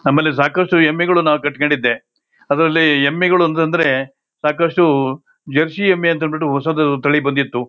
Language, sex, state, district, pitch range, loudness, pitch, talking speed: Kannada, male, Karnataka, Shimoga, 140-165 Hz, -15 LUFS, 155 Hz, 140 wpm